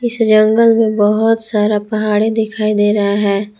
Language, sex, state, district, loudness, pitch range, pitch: Hindi, female, Jharkhand, Palamu, -13 LUFS, 210-225 Hz, 215 Hz